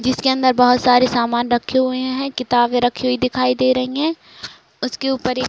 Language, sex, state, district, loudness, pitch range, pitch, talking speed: Hindi, female, Uttar Pradesh, Varanasi, -17 LUFS, 245-260 Hz, 255 Hz, 210 wpm